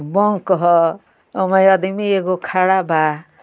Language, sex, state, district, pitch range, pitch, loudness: Bhojpuri, female, Uttar Pradesh, Ghazipur, 165-190 Hz, 185 Hz, -16 LUFS